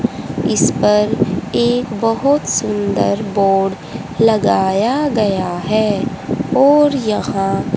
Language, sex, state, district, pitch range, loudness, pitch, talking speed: Hindi, female, Haryana, Charkhi Dadri, 195-240 Hz, -15 LUFS, 210 Hz, 85 wpm